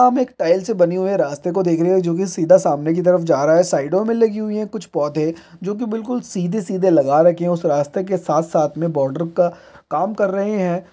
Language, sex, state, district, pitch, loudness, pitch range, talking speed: Hindi, male, Bihar, East Champaran, 180 Hz, -18 LUFS, 170-205 Hz, 245 wpm